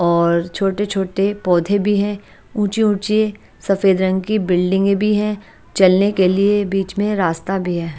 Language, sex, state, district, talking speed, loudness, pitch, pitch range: Hindi, female, Chhattisgarh, Raipur, 165 wpm, -17 LUFS, 195 Hz, 185-205 Hz